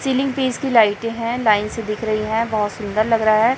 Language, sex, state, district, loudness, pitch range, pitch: Hindi, female, Chhattisgarh, Raipur, -19 LUFS, 215-240 Hz, 225 Hz